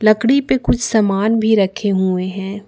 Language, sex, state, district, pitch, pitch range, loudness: Hindi, female, Jharkhand, Ranchi, 215 Hz, 195-225 Hz, -16 LUFS